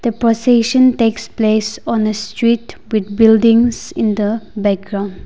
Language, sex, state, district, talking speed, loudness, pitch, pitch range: English, female, Nagaland, Dimapur, 135 wpm, -15 LUFS, 225 Hz, 215-230 Hz